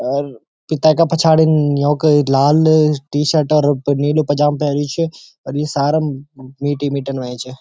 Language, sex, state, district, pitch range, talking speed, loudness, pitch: Garhwali, male, Uttarakhand, Uttarkashi, 140-155 Hz, 160 wpm, -16 LUFS, 145 Hz